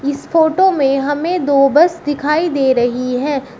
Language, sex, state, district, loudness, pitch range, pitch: Hindi, female, Uttar Pradesh, Shamli, -14 LUFS, 275-320 Hz, 290 Hz